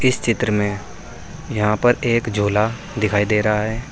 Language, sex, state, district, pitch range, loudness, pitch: Hindi, male, Uttar Pradesh, Saharanpur, 105-120 Hz, -19 LUFS, 105 Hz